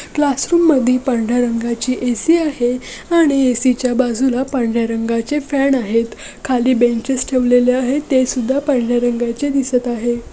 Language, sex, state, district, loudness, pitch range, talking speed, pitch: Marathi, female, Maharashtra, Nagpur, -16 LUFS, 240-270 Hz, 140 wpm, 255 Hz